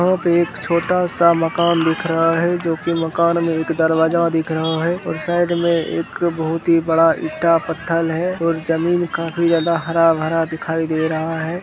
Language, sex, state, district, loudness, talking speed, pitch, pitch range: Maithili, male, Bihar, Begusarai, -18 LUFS, 190 wpm, 165 Hz, 160-170 Hz